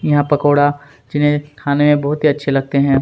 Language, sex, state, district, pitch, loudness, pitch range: Hindi, male, Chhattisgarh, Kabirdham, 145 Hz, -15 LUFS, 140-145 Hz